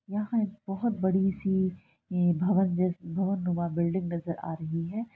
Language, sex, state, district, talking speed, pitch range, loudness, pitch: Hindi, female, Bihar, Araria, 150 wpm, 175-195 Hz, -29 LUFS, 185 Hz